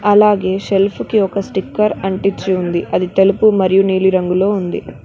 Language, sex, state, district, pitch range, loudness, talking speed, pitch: Telugu, female, Telangana, Mahabubabad, 190-200 Hz, -15 LUFS, 155 wpm, 195 Hz